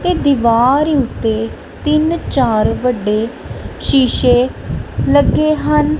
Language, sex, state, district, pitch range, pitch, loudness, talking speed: Punjabi, female, Punjab, Kapurthala, 220-285 Hz, 245 Hz, -14 LUFS, 90 wpm